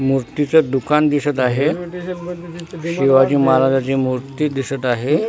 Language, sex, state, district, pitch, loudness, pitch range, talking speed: Marathi, male, Maharashtra, Washim, 140 Hz, -17 LUFS, 135-160 Hz, 100 wpm